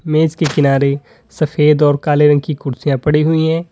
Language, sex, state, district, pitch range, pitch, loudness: Hindi, male, Uttar Pradesh, Lalitpur, 145-160 Hz, 150 Hz, -14 LUFS